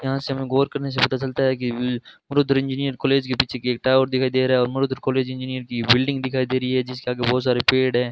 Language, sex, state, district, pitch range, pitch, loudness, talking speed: Hindi, male, Rajasthan, Bikaner, 125-135 Hz, 130 Hz, -21 LUFS, 280 wpm